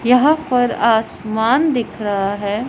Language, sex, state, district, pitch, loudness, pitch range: Hindi, female, Punjab, Pathankot, 230 Hz, -17 LUFS, 210-250 Hz